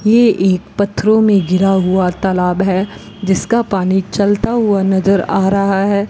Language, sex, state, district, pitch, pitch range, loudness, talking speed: Hindi, female, Rajasthan, Bikaner, 195 Hz, 190-205 Hz, -14 LUFS, 155 wpm